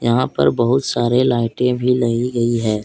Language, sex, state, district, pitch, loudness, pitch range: Hindi, male, Jharkhand, Deoghar, 120 Hz, -17 LUFS, 115-125 Hz